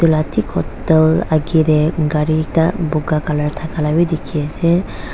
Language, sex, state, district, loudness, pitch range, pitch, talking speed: Nagamese, female, Nagaland, Dimapur, -16 LUFS, 150-160 Hz, 155 Hz, 140 wpm